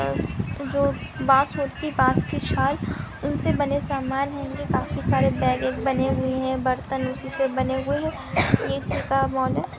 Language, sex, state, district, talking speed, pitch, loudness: Hindi, female, Maharashtra, Pune, 85 wpm, 260 Hz, -24 LUFS